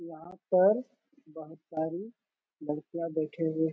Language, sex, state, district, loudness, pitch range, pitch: Hindi, male, Bihar, Jamui, -31 LUFS, 160-190 Hz, 165 Hz